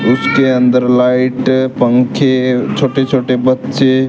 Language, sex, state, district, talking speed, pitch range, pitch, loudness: Hindi, male, Haryana, Charkhi Dadri, 100 wpm, 125-130 Hz, 130 Hz, -12 LUFS